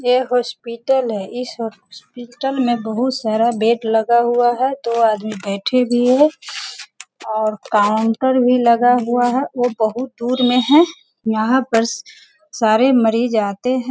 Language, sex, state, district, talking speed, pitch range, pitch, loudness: Hindi, female, Bihar, Sitamarhi, 145 wpm, 225-255 Hz, 240 Hz, -17 LUFS